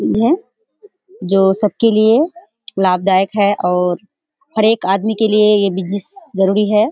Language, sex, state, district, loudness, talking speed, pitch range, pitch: Hindi, female, Bihar, Kishanganj, -15 LUFS, 140 wpm, 195-230 Hz, 210 Hz